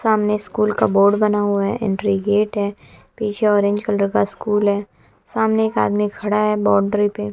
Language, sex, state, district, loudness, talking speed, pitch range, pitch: Hindi, female, Bihar, West Champaran, -18 LUFS, 190 wpm, 200-210 Hz, 205 Hz